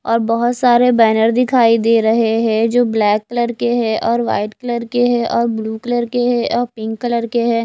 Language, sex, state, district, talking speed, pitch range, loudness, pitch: Hindi, female, Odisha, Nuapada, 220 wpm, 225-240 Hz, -15 LUFS, 235 Hz